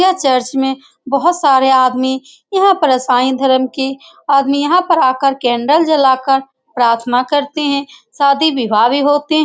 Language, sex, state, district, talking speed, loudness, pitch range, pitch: Hindi, female, Bihar, Saran, 165 wpm, -13 LUFS, 260-295 Hz, 275 Hz